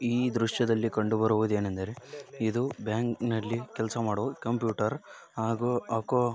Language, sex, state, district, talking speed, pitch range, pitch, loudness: Kannada, male, Karnataka, Raichur, 130 wpm, 110-120 Hz, 115 Hz, -30 LUFS